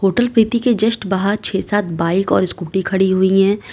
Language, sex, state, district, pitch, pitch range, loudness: Hindi, female, Uttar Pradesh, Lalitpur, 195 Hz, 190-220 Hz, -16 LUFS